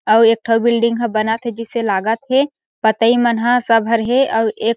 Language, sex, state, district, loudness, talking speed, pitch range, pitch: Chhattisgarhi, female, Chhattisgarh, Sarguja, -16 LUFS, 215 wpm, 225-240 Hz, 230 Hz